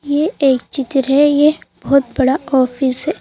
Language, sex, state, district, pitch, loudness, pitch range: Hindi, female, Madhya Pradesh, Bhopal, 275 Hz, -15 LUFS, 260-290 Hz